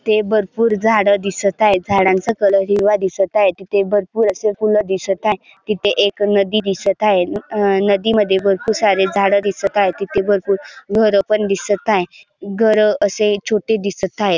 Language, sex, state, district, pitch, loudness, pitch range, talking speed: Marathi, male, Maharashtra, Dhule, 200 Hz, -16 LUFS, 195-215 Hz, 165 wpm